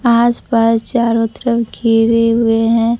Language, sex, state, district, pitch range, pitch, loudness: Hindi, female, Bihar, Kaimur, 230-235 Hz, 230 Hz, -14 LUFS